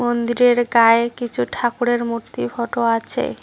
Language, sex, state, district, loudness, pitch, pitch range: Bengali, female, West Bengal, Cooch Behar, -18 LUFS, 235 Hz, 230-240 Hz